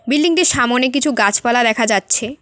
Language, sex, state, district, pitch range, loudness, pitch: Bengali, female, West Bengal, Cooch Behar, 225-285 Hz, -14 LUFS, 245 Hz